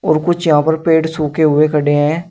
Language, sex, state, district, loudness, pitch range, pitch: Hindi, male, Uttar Pradesh, Shamli, -14 LUFS, 150-160 Hz, 155 Hz